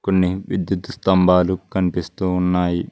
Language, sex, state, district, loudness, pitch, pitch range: Telugu, male, Telangana, Mahabubabad, -19 LUFS, 90 Hz, 90-95 Hz